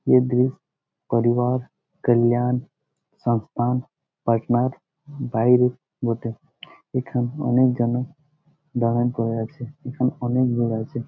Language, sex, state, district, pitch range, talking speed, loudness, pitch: Bengali, male, West Bengal, Jhargram, 120-130 Hz, 90 wpm, -23 LUFS, 125 Hz